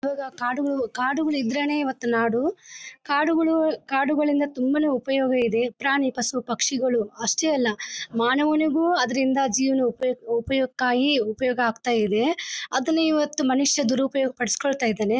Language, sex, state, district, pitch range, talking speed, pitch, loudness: Kannada, female, Karnataka, Bellary, 245-290 Hz, 110 wpm, 265 Hz, -23 LUFS